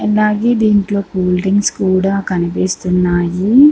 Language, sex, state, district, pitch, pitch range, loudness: Telugu, female, Andhra Pradesh, Krishna, 195 Hz, 180-210 Hz, -14 LUFS